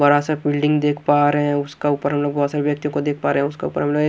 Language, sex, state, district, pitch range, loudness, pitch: Hindi, male, Haryana, Rohtak, 145-150 Hz, -19 LUFS, 145 Hz